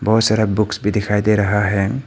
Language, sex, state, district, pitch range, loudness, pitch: Hindi, male, Arunachal Pradesh, Papum Pare, 105-110 Hz, -17 LUFS, 105 Hz